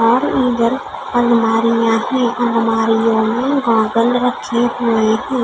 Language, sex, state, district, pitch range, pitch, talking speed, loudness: Hindi, female, Odisha, Khordha, 225-245 Hz, 235 Hz, 110 wpm, -15 LUFS